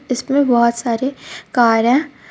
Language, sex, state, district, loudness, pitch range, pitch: Hindi, female, Jharkhand, Ranchi, -16 LUFS, 235-275 Hz, 250 Hz